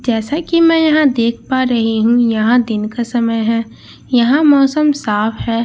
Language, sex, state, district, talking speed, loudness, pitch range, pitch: Hindi, female, Bihar, Katihar, 180 wpm, -14 LUFS, 230-285 Hz, 235 Hz